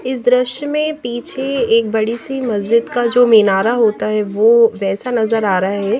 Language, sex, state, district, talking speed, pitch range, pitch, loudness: Hindi, female, Bihar, Patna, 210 wpm, 215-250 Hz, 230 Hz, -15 LUFS